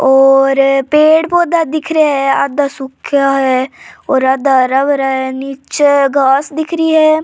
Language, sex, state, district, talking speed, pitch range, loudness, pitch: Rajasthani, female, Rajasthan, Churu, 160 wpm, 270-310 Hz, -12 LUFS, 275 Hz